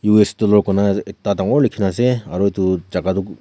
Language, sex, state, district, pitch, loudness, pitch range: Nagamese, male, Nagaland, Kohima, 100 Hz, -17 LUFS, 95-105 Hz